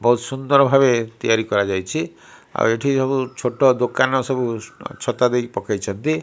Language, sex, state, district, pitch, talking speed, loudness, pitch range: Odia, male, Odisha, Malkangiri, 125 Hz, 125 wpm, -19 LUFS, 115-135 Hz